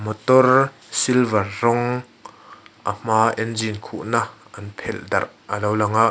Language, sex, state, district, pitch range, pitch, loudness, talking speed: Mizo, male, Mizoram, Aizawl, 105-120 Hz, 110 Hz, -20 LUFS, 135 wpm